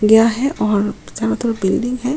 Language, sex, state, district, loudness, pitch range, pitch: Hindi, female, Goa, North and South Goa, -17 LUFS, 215-250 Hz, 225 Hz